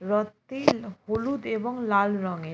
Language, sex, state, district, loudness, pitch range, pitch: Bengali, female, West Bengal, Jalpaiguri, -27 LUFS, 200-245 Hz, 215 Hz